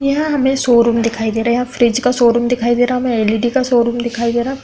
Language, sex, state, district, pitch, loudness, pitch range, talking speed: Hindi, female, Uttar Pradesh, Hamirpur, 240 Hz, -15 LUFS, 235-250 Hz, 285 wpm